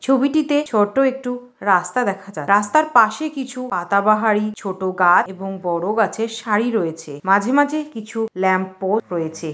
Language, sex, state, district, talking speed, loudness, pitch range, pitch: Bengali, female, West Bengal, Kolkata, 145 wpm, -19 LUFS, 190-250 Hz, 215 Hz